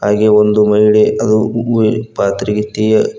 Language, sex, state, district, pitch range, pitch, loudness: Kannada, male, Karnataka, Koppal, 105-110 Hz, 105 Hz, -12 LUFS